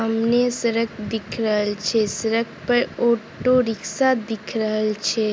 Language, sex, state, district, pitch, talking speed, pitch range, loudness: Maithili, female, Bihar, Begusarai, 225 Hz, 135 wpm, 215-235 Hz, -21 LUFS